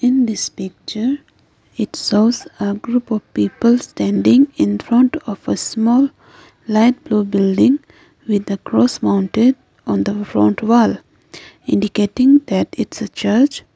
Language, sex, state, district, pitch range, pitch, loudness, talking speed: English, female, Arunachal Pradesh, Lower Dibang Valley, 200-255 Hz, 220 Hz, -16 LUFS, 135 wpm